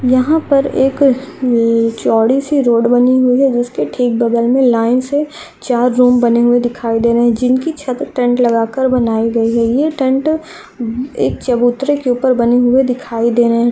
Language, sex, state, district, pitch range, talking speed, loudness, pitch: Hindi, female, Andhra Pradesh, Anantapur, 235-265 Hz, 190 wpm, -13 LUFS, 250 Hz